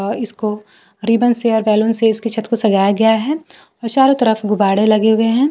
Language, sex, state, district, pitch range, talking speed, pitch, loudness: Hindi, female, Bihar, Kaimur, 210-230 Hz, 215 wpm, 225 Hz, -14 LUFS